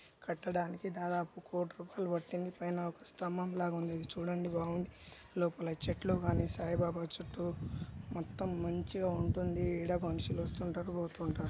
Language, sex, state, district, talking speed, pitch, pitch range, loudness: Telugu, male, Telangana, Nalgonda, 135 wpm, 175 Hz, 170-180 Hz, -38 LUFS